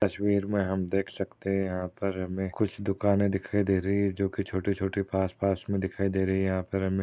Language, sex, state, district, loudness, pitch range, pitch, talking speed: Hindi, male, Maharashtra, Chandrapur, -29 LUFS, 95-100 Hz, 95 Hz, 230 wpm